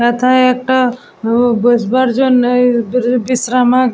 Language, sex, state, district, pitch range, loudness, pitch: Bengali, female, West Bengal, Jalpaiguri, 240-255 Hz, -12 LUFS, 250 Hz